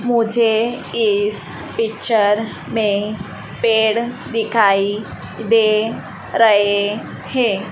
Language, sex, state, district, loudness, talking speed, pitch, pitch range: Hindi, female, Madhya Pradesh, Dhar, -17 LUFS, 70 wpm, 225 Hz, 210-235 Hz